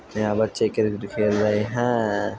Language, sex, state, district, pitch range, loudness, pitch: Hindi, male, Uttar Pradesh, Muzaffarnagar, 105-110 Hz, -23 LUFS, 105 Hz